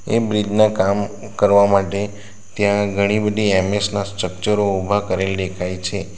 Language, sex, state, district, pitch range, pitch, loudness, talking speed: Gujarati, male, Gujarat, Valsad, 95-105 Hz, 100 Hz, -18 LUFS, 155 wpm